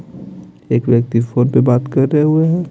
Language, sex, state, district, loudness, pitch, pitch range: Hindi, male, Bihar, Patna, -14 LUFS, 125 Hz, 120-150 Hz